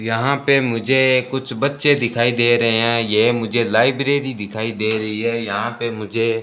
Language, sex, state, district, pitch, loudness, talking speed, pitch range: Hindi, male, Rajasthan, Bikaner, 115 Hz, -17 LUFS, 185 wpm, 115-130 Hz